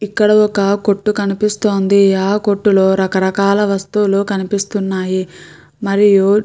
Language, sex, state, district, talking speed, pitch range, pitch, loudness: Telugu, female, Andhra Pradesh, Guntur, 100 wpm, 195-205 Hz, 200 Hz, -14 LUFS